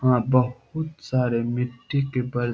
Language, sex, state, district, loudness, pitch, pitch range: Hindi, male, Bihar, Jamui, -24 LUFS, 125 Hz, 120-130 Hz